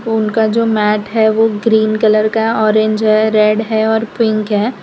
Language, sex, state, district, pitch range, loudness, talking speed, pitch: Hindi, female, Gujarat, Valsad, 215-220 Hz, -13 LUFS, 185 wpm, 220 Hz